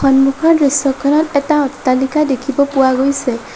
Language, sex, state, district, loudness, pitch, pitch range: Assamese, female, Assam, Sonitpur, -14 LUFS, 280 Hz, 265-290 Hz